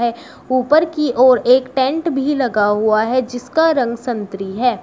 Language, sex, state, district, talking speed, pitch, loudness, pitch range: Hindi, female, Uttar Pradesh, Shamli, 160 wpm, 255 Hz, -16 LUFS, 235-270 Hz